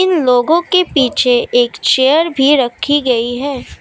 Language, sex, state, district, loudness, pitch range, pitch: Hindi, female, Assam, Kamrup Metropolitan, -13 LUFS, 245-300 Hz, 270 Hz